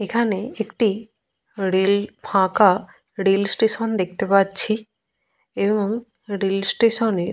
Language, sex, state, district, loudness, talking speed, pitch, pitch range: Bengali, female, Jharkhand, Jamtara, -21 LUFS, 115 wpm, 205 Hz, 195-220 Hz